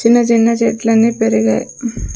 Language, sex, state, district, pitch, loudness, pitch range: Telugu, female, Andhra Pradesh, Sri Satya Sai, 230 Hz, -14 LUFS, 225-235 Hz